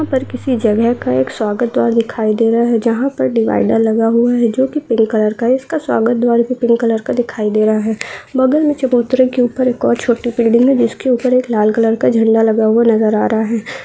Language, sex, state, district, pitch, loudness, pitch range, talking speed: Hindi, female, Bihar, Saharsa, 235 Hz, -14 LUFS, 220-250 Hz, 250 wpm